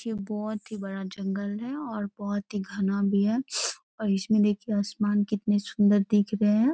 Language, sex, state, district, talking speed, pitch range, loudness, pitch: Hindi, female, Bihar, Bhagalpur, 185 wpm, 200-215 Hz, -27 LUFS, 205 Hz